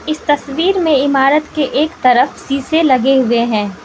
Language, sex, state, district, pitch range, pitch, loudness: Hindi, female, Manipur, Imphal West, 255-310 Hz, 275 Hz, -13 LUFS